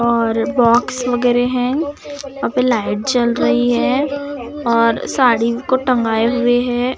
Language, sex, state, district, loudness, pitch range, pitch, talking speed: Hindi, female, Maharashtra, Gondia, -16 LUFS, 235-260 Hz, 245 Hz, 135 wpm